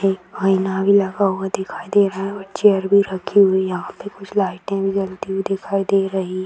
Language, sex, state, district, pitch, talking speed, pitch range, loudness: Hindi, female, Bihar, Jamui, 195 Hz, 230 wpm, 190-200 Hz, -19 LUFS